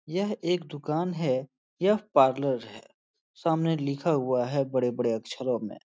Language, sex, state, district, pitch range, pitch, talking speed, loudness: Hindi, male, Uttar Pradesh, Etah, 130-165 Hz, 140 Hz, 140 wpm, -28 LUFS